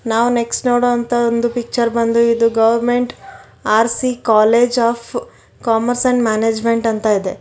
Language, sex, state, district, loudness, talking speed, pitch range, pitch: Kannada, female, Karnataka, Bangalore, -15 LUFS, 140 wpm, 225-240 Hz, 235 Hz